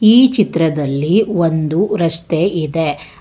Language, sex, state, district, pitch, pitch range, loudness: Kannada, female, Karnataka, Bangalore, 165 Hz, 160-205 Hz, -15 LUFS